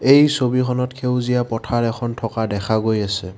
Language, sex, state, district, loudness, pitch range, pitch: Assamese, male, Assam, Kamrup Metropolitan, -19 LUFS, 110-125 Hz, 120 Hz